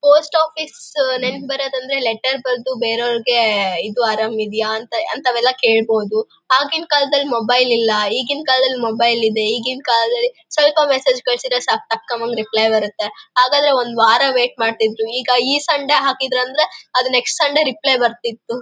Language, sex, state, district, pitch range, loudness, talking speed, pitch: Kannada, female, Karnataka, Bellary, 230-285 Hz, -16 LUFS, 140 wpm, 250 Hz